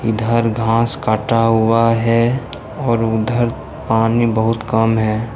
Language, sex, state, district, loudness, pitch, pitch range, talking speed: Hindi, male, Jharkhand, Deoghar, -16 LUFS, 115 Hz, 110-115 Hz, 125 wpm